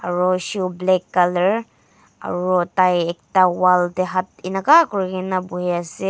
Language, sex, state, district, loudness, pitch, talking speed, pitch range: Nagamese, female, Nagaland, Kohima, -19 LUFS, 185 Hz, 155 wpm, 180-185 Hz